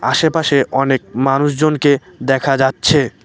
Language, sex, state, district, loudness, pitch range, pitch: Bengali, male, West Bengal, Cooch Behar, -15 LUFS, 135-150 Hz, 135 Hz